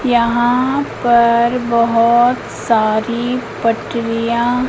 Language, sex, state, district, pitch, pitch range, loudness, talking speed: Hindi, female, Madhya Pradesh, Katni, 235 Hz, 230-245 Hz, -15 LUFS, 65 wpm